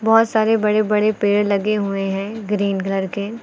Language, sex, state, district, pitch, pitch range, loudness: Hindi, female, Uttar Pradesh, Lucknow, 210 Hz, 200-215 Hz, -19 LUFS